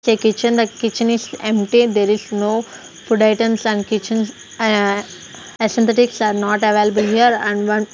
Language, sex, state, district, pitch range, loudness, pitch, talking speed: English, female, Punjab, Kapurthala, 210-230 Hz, -17 LUFS, 220 Hz, 165 wpm